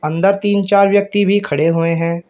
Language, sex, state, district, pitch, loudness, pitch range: Hindi, male, Uttar Pradesh, Shamli, 195 Hz, -14 LUFS, 165-200 Hz